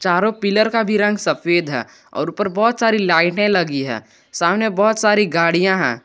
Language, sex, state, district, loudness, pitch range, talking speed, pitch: Hindi, male, Jharkhand, Garhwa, -17 LUFS, 165-210 Hz, 190 wpm, 190 Hz